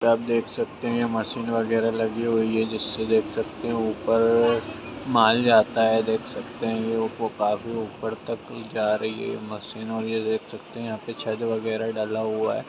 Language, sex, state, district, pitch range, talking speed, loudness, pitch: Hindi, male, Bihar, Gaya, 110-115 Hz, 185 wpm, -25 LUFS, 110 Hz